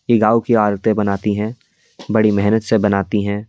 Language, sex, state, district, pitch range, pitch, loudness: Hindi, male, Delhi, New Delhi, 105-110 Hz, 105 Hz, -17 LUFS